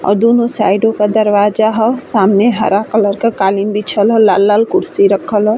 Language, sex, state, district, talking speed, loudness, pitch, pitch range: Bhojpuri, female, Uttar Pradesh, Ghazipur, 195 wpm, -12 LUFS, 210 Hz, 200-225 Hz